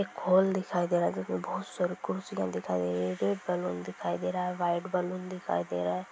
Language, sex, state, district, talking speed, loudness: Hindi, female, Bihar, Sitamarhi, 255 wpm, -31 LUFS